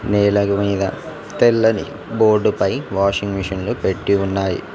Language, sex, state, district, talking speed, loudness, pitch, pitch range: Telugu, male, Telangana, Mahabubabad, 100 wpm, -18 LUFS, 100 Hz, 95-110 Hz